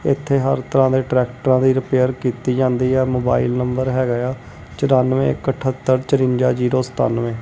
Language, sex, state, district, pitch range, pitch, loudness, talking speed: Punjabi, male, Punjab, Kapurthala, 125-130 Hz, 130 Hz, -18 LUFS, 170 wpm